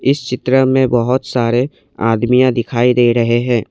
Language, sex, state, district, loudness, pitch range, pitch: Hindi, male, Assam, Kamrup Metropolitan, -14 LUFS, 120-130 Hz, 125 Hz